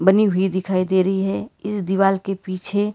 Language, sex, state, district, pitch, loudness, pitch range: Hindi, female, Karnataka, Bangalore, 190 Hz, -20 LUFS, 185-195 Hz